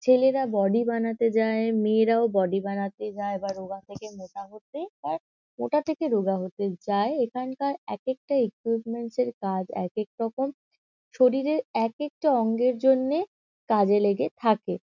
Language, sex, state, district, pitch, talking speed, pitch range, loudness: Bengali, female, West Bengal, Kolkata, 225 Hz, 135 wpm, 200-260 Hz, -26 LUFS